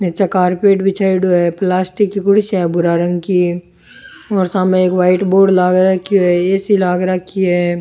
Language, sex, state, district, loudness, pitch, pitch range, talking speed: Rajasthani, male, Rajasthan, Churu, -14 LUFS, 185 Hz, 180-195 Hz, 175 wpm